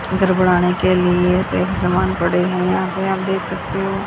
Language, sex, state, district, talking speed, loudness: Hindi, female, Haryana, Charkhi Dadri, 190 wpm, -17 LUFS